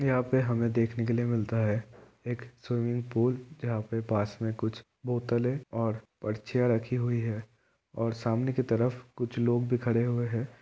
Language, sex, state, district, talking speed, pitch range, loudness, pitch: Hindi, male, Bihar, Kishanganj, 180 wpm, 115-125 Hz, -30 LUFS, 120 Hz